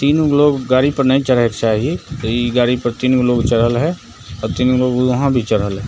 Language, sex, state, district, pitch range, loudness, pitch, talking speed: Maithili, male, Bihar, Begusarai, 115-135 Hz, -15 LUFS, 125 Hz, 245 wpm